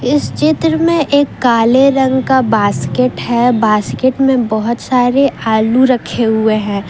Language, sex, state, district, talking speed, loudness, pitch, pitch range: Hindi, female, Jharkhand, Ranchi, 155 wpm, -12 LUFS, 245 Hz, 220-270 Hz